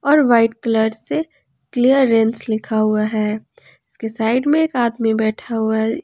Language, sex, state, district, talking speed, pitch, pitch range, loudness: Hindi, female, Jharkhand, Ranchi, 150 wpm, 225 Hz, 220-255 Hz, -18 LUFS